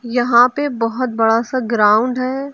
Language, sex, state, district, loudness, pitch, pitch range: Hindi, female, Uttar Pradesh, Lucknow, -16 LUFS, 240 Hz, 230-255 Hz